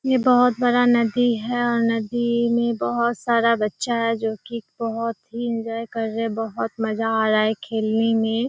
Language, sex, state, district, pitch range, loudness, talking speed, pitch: Hindi, female, Bihar, Kishanganj, 225-240 Hz, -21 LUFS, 175 wpm, 230 Hz